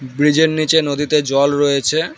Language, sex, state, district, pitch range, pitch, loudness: Bengali, male, West Bengal, Alipurduar, 140-155 Hz, 150 Hz, -15 LUFS